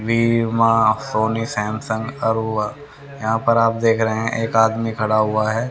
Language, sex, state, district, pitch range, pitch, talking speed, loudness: Hindi, male, Haryana, Rohtak, 110-115 Hz, 115 Hz, 155 wpm, -19 LUFS